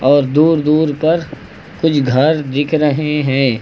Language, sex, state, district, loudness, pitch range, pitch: Hindi, male, Uttar Pradesh, Lucknow, -14 LUFS, 135-155 Hz, 150 Hz